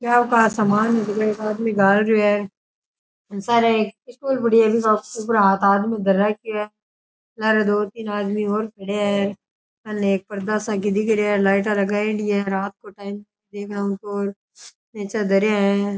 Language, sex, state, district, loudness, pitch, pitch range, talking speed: Rajasthani, male, Rajasthan, Churu, -20 LUFS, 210 Hz, 200-220 Hz, 95 wpm